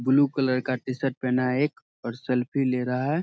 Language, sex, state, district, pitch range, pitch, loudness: Hindi, male, Bihar, Saharsa, 125-135 Hz, 130 Hz, -26 LUFS